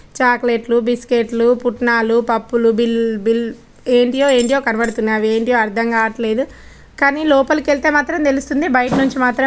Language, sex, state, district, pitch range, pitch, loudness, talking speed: Telugu, female, Telangana, Nalgonda, 230-270 Hz, 240 Hz, -16 LUFS, 125 wpm